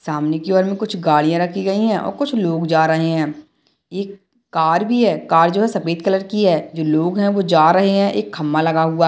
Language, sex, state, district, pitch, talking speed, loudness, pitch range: Hindi, male, Bihar, Lakhisarai, 170 Hz, 245 wpm, -17 LUFS, 160-195 Hz